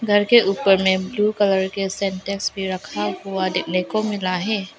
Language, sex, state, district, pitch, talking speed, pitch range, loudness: Hindi, female, Arunachal Pradesh, Lower Dibang Valley, 195 Hz, 190 wpm, 185-205 Hz, -20 LUFS